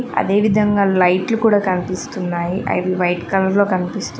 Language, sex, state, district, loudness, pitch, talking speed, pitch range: Telugu, female, Telangana, Mahabubabad, -17 LUFS, 190 Hz, 140 wpm, 180-205 Hz